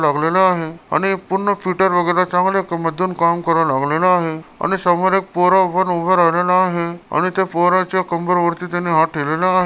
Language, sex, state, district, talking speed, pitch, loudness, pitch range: Marathi, male, Maharashtra, Chandrapur, 185 wpm, 180 Hz, -17 LUFS, 170-185 Hz